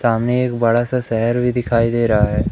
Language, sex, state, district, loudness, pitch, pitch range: Hindi, male, Madhya Pradesh, Umaria, -17 LUFS, 115 Hz, 115-120 Hz